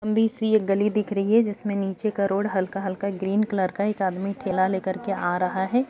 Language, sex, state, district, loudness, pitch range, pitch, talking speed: Hindi, female, Bihar, Saharsa, -24 LUFS, 190-210 Hz, 200 Hz, 235 wpm